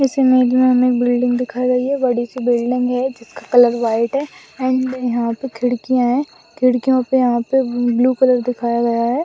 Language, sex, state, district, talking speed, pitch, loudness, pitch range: Hindi, female, Rajasthan, Churu, 200 wpm, 250 Hz, -17 LUFS, 240-255 Hz